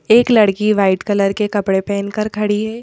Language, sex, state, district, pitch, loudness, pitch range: Hindi, female, Madhya Pradesh, Bhopal, 210 Hz, -16 LUFS, 200-215 Hz